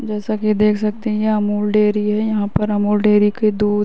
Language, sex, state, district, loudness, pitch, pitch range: Hindi, female, Uttar Pradesh, Varanasi, -17 LUFS, 210 Hz, 210-215 Hz